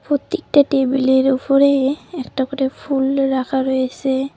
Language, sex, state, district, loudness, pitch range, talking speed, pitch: Bengali, female, West Bengal, Cooch Behar, -17 LUFS, 265-275 Hz, 110 wpm, 270 Hz